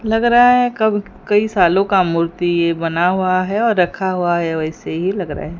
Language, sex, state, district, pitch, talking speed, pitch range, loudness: Hindi, female, Odisha, Sambalpur, 185 Hz, 215 wpm, 170-205 Hz, -16 LUFS